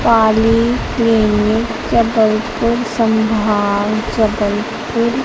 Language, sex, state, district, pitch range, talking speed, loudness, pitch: Hindi, female, Madhya Pradesh, Katni, 215-230 Hz, 70 wpm, -15 LUFS, 225 Hz